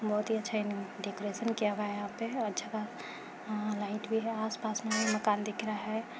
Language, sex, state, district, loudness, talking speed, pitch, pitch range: Hindi, female, Bihar, Jahanabad, -34 LUFS, 215 wpm, 215 Hz, 210-225 Hz